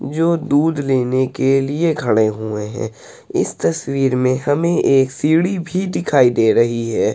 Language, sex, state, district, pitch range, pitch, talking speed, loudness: Hindi, male, Uttar Pradesh, Hamirpur, 115-155 Hz, 135 Hz, 160 wpm, -17 LUFS